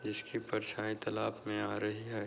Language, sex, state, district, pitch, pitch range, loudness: Hindi, male, Uttar Pradesh, Budaun, 105 Hz, 105-110 Hz, -38 LUFS